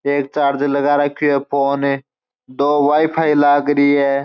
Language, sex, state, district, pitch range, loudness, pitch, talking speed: Marwari, male, Rajasthan, Churu, 140-145 Hz, -16 LUFS, 145 Hz, 155 wpm